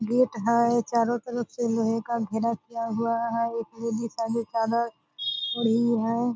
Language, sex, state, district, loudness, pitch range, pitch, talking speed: Hindi, female, Bihar, Purnia, -26 LUFS, 230-235 Hz, 230 Hz, 130 wpm